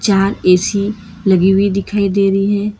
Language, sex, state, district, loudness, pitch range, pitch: Hindi, female, Karnataka, Bangalore, -14 LUFS, 195-205 Hz, 200 Hz